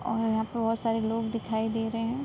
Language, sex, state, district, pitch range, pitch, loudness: Hindi, female, Uttar Pradesh, Budaun, 225-230 Hz, 225 Hz, -29 LUFS